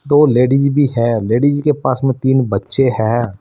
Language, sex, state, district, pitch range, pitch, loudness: Hindi, male, Uttar Pradesh, Saharanpur, 115-140 Hz, 130 Hz, -14 LUFS